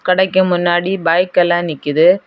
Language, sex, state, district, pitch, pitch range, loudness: Tamil, female, Tamil Nadu, Kanyakumari, 175 Hz, 170-190 Hz, -14 LUFS